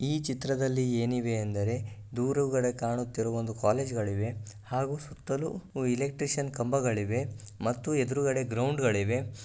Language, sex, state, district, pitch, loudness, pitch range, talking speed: Kannada, male, Karnataka, Gulbarga, 125 Hz, -31 LUFS, 115-135 Hz, 85 wpm